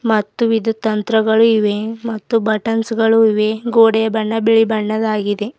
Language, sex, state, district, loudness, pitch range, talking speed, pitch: Kannada, female, Karnataka, Bidar, -16 LUFS, 215-225 Hz, 130 wpm, 220 Hz